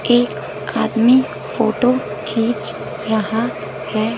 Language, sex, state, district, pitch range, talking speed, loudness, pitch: Hindi, female, Punjab, Fazilka, 210-240 Hz, 85 wpm, -18 LUFS, 225 Hz